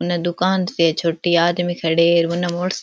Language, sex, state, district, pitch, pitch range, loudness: Rajasthani, female, Rajasthan, Churu, 175 Hz, 170-175 Hz, -18 LUFS